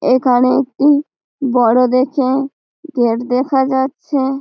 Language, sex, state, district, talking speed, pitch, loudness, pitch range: Bengali, female, West Bengal, Malda, 110 wpm, 265 Hz, -15 LUFS, 250-275 Hz